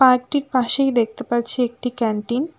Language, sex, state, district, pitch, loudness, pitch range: Bengali, female, West Bengal, Alipurduar, 250 Hz, -18 LUFS, 235-260 Hz